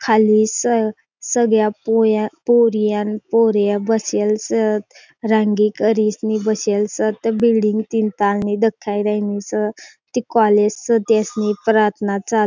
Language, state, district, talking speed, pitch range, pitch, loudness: Bhili, Maharashtra, Dhule, 140 wpm, 210-225 Hz, 215 Hz, -17 LUFS